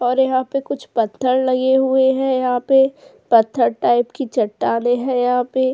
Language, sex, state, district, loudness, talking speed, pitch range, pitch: Hindi, female, Goa, North and South Goa, -17 LUFS, 190 wpm, 245-265 Hz, 255 Hz